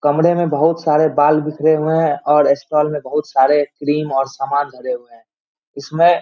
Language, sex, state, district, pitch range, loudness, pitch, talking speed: Hindi, male, Bihar, Samastipur, 145-160 Hz, -16 LUFS, 150 Hz, 195 wpm